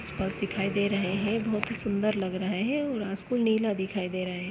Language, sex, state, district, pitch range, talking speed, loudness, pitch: Hindi, male, West Bengal, Jalpaiguri, 190-220 Hz, 240 wpm, -29 LUFS, 200 Hz